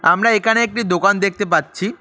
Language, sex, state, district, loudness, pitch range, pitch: Bengali, male, West Bengal, Cooch Behar, -16 LUFS, 195-230 Hz, 205 Hz